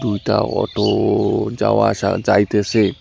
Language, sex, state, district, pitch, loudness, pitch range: Bengali, male, West Bengal, Alipurduar, 105 Hz, -17 LUFS, 100-115 Hz